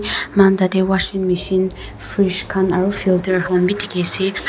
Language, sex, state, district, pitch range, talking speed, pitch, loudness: Nagamese, female, Nagaland, Dimapur, 185-195 Hz, 135 wpm, 190 Hz, -17 LUFS